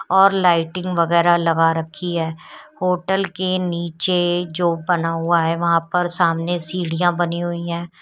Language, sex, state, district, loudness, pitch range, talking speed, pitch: Hindi, female, Uttar Pradesh, Shamli, -19 LUFS, 170-180 Hz, 150 wpm, 175 Hz